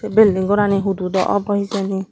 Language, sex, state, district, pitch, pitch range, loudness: Chakma, female, Tripura, Dhalai, 200 Hz, 190-205 Hz, -18 LUFS